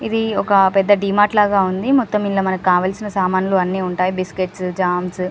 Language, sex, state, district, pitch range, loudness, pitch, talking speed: Telugu, female, Telangana, Karimnagar, 185-205 Hz, -17 LUFS, 190 Hz, 190 wpm